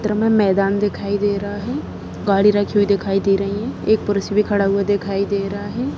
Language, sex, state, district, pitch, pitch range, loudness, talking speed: Hindi, female, Goa, North and South Goa, 205 Hz, 200-210 Hz, -19 LUFS, 230 wpm